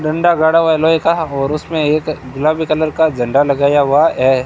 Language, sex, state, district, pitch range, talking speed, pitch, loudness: Hindi, male, Rajasthan, Bikaner, 140-160 Hz, 215 wpm, 155 Hz, -14 LUFS